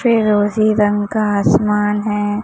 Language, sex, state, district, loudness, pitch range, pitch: Hindi, female, Maharashtra, Mumbai Suburban, -15 LUFS, 205-215 Hz, 210 Hz